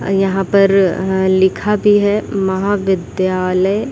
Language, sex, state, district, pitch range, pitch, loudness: Hindi, female, Bihar, Saran, 190-205 Hz, 195 Hz, -14 LUFS